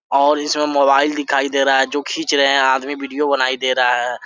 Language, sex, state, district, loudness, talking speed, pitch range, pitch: Hindi, male, Jharkhand, Sahebganj, -16 LUFS, 240 wpm, 135-145 Hz, 140 Hz